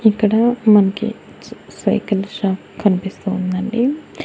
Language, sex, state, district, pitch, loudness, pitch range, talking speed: Telugu, female, Andhra Pradesh, Annamaya, 205 Hz, -18 LUFS, 195-220 Hz, 70 wpm